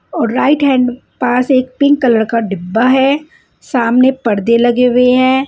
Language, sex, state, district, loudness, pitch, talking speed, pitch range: Hindi, female, Punjab, Fazilka, -12 LUFS, 250 Hz, 165 wpm, 235-265 Hz